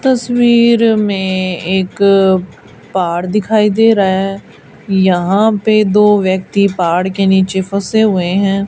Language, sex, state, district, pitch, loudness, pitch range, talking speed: Hindi, female, Haryana, Charkhi Dadri, 195 Hz, -12 LUFS, 190-215 Hz, 125 wpm